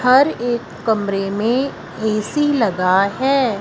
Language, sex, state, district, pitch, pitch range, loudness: Hindi, female, Punjab, Fazilka, 230 Hz, 205-265 Hz, -18 LUFS